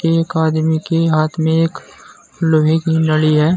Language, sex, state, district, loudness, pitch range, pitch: Hindi, male, Uttar Pradesh, Saharanpur, -15 LUFS, 155-165 Hz, 160 Hz